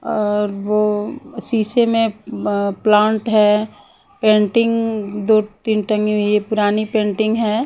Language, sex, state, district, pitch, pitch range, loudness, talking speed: Hindi, female, Haryana, Charkhi Dadri, 215 Hz, 210-220 Hz, -17 LUFS, 115 wpm